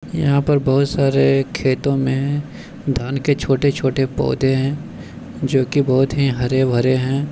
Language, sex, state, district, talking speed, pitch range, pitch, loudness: Hindi, male, Bihar, Bhagalpur, 140 wpm, 130-140 Hz, 135 Hz, -18 LUFS